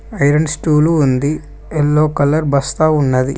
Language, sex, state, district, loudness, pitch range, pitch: Telugu, male, Telangana, Mahabubabad, -14 LUFS, 140-155 Hz, 150 Hz